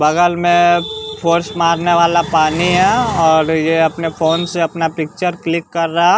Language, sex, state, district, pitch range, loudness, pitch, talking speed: Hindi, male, Bihar, West Champaran, 160-175 Hz, -14 LUFS, 170 Hz, 165 wpm